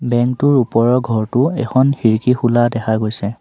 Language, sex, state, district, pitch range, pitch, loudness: Assamese, male, Assam, Sonitpur, 110-130 Hz, 120 Hz, -15 LUFS